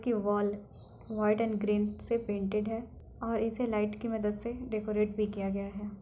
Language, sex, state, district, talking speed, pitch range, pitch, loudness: Hindi, female, Uttar Pradesh, Etah, 190 wpm, 205-225 Hz, 210 Hz, -33 LUFS